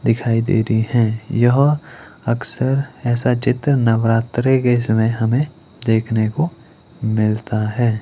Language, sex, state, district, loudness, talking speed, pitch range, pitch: Hindi, male, Himachal Pradesh, Shimla, -18 LUFS, 120 wpm, 110-130 Hz, 120 Hz